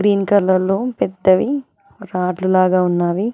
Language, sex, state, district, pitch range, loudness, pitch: Telugu, female, Telangana, Mahabubabad, 185-205 Hz, -17 LUFS, 190 Hz